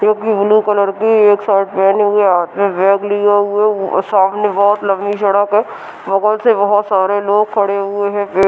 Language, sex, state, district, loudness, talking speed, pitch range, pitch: Hindi, female, Uttar Pradesh, Deoria, -13 LUFS, 205 wpm, 195-210 Hz, 205 Hz